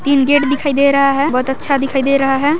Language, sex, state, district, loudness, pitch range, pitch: Hindi, female, Chhattisgarh, Sarguja, -14 LUFS, 270-280 Hz, 275 Hz